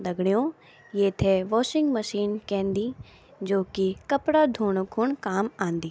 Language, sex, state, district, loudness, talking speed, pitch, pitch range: Garhwali, female, Uttarakhand, Tehri Garhwal, -26 LUFS, 120 wpm, 205 Hz, 195-235 Hz